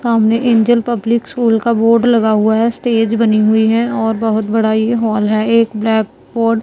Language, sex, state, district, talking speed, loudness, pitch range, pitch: Hindi, female, Punjab, Pathankot, 210 wpm, -13 LUFS, 220-235 Hz, 225 Hz